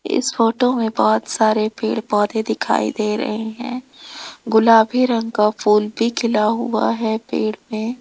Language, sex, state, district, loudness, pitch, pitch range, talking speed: Hindi, female, Rajasthan, Jaipur, -18 LUFS, 225 Hz, 215-245 Hz, 155 wpm